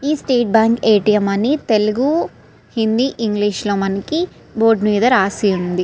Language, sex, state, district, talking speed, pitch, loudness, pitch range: Telugu, female, Andhra Pradesh, Srikakulam, 145 wpm, 220 Hz, -16 LUFS, 205-250 Hz